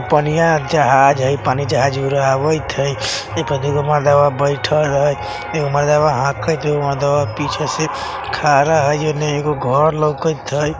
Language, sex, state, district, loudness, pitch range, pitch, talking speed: Bajjika, male, Bihar, Vaishali, -16 LUFS, 140-150 Hz, 145 Hz, 150 wpm